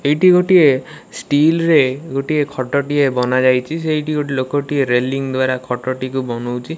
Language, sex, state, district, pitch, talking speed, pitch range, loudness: Odia, male, Odisha, Malkangiri, 140 Hz, 115 wpm, 130-150 Hz, -16 LUFS